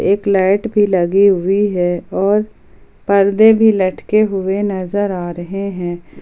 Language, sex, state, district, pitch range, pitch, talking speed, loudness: Hindi, female, Jharkhand, Palamu, 185-205 Hz, 195 Hz, 145 wpm, -15 LUFS